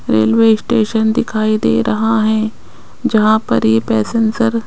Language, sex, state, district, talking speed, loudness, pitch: Hindi, female, Rajasthan, Jaipur, 140 wpm, -14 LUFS, 220 Hz